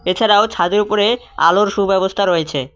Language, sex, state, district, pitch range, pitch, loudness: Bengali, male, West Bengal, Cooch Behar, 175-210 Hz, 200 Hz, -15 LUFS